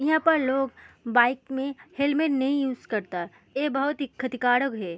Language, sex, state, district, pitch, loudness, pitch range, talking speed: Hindi, female, Uttar Pradesh, Muzaffarnagar, 270 Hz, -26 LUFS, 245-285 Hz, 170 wpm